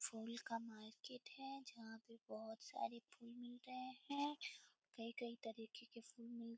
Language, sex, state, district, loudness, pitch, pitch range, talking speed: Hindi, female, Bihar, Samastipur, -52 LUFS, 235 Hz, 230-255 Hz, 165 wpm